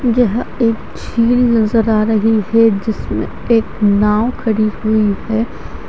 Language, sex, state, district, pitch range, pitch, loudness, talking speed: Hindi, female, Haryana, Charkhi Dadri, 210-230 Hz, 220 Hz, -15 LUFS, 145 wpm